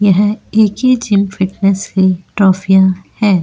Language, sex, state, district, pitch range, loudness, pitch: Hindi, female, Maharashtra, Aurangabad, 190-205 Hz, -13 LUFS, 195 Hz